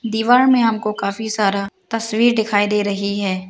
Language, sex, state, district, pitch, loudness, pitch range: Hindi, female, Arunachal Pradesh, Lower Dibang Valley, 210 Hz, -18 LUFS, 200-225 Hz